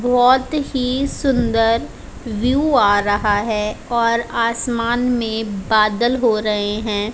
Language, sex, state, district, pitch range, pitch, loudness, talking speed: Hindi, female, Haryana, Charkhi Dadri, 215-250 Hz, 230 Hz, -18 LUFS, 120 wpm